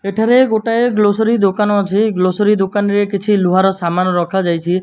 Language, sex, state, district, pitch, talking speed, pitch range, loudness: Odia, male, Odisha, Malkangiri, 200 Hz, 150 wpm, 185-210 Hz, -14 LUFS